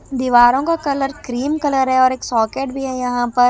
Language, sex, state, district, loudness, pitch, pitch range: Hindi, female, Chhattisgarh, Raipur, -17 LUFS, 260 Hz, 245-275 Hz